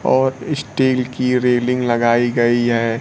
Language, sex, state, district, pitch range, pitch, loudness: Hindi, male, Bihar, Kaimur, 120-130 Hz, 125 Hz, -17 LUFS